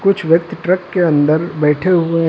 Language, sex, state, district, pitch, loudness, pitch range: Hindi, male, Uttar Pradesh, Lucknow, 165 Hz, -15 LUFS, 155-185 Hz